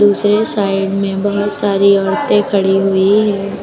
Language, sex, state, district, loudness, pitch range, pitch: Hindi, female, Uttar Pradesh, Lucknow, -13 LUFS, 195-205 Hz, 200 Hz